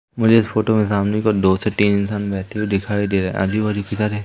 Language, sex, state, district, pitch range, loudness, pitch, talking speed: Hindi, male, Madhya Pradesh, Umaria, 100-110 Hz, -19 LUFS, 105 Hz, 270 wpm